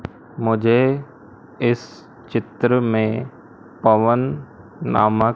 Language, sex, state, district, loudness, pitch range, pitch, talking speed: Hindi, male, Madhya Pradesh, Umaria, -19 LUFS, 110-125 Hz, 115 Hz, 65 wpm